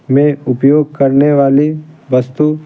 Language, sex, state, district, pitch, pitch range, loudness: Hindi, male, Bihar, Patna, 145 Hz, 135-150 Hz, -12 LUFS